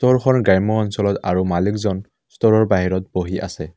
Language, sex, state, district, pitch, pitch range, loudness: Assamese, male, Assam, Kamrup Metropolitan, 100 Hz, 95-110 Hz, -18 LUFS